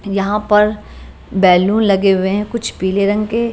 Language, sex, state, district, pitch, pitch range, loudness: Hindi, female, Punjab, Pathankot, 205 Hz, 195-210 Hz, -15 LUFS